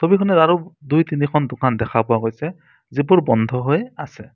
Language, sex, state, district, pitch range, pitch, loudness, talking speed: Assamese, male, Assam, Sonitpur, 125-165 Hz, 150 Hz, -18 LUFS, 165 wpm